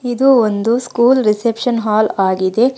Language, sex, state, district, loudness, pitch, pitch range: Kannada, female, Karnataka, Bangalore, -14 LUFS, 230 Hz, 210-245 Hz